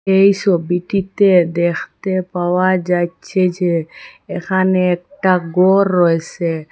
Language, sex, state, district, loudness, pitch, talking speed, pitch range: Bengali, female, Assam, Hailakandi, -16 LUFS, 180 Hz, 90 wpm, 175-190 Hz